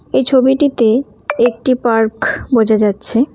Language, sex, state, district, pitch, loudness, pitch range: Bengali, female, West Bengal, Cooch Behar, 240 Hz, -14 LUFS, 225-260 Hz